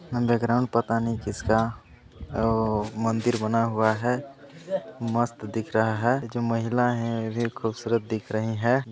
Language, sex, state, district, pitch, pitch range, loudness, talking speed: Hindi, male, Chhattisgarh, Sarguja, 115 Hz, 110-120 Hz, -26 LUFS, 140 wpm